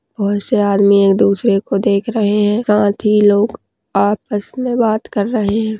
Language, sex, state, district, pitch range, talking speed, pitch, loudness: Hindi, female, Rajasthan, Nagaur, 200-220 Hz, 185 wpm, 210 Hz, -15 LUFS